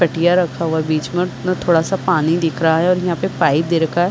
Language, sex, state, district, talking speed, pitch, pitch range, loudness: Hindi, female, Chhattisgarh, Bilaspur, 305 wpm, 170 Hz, 160-180 Hz, -17 LUFS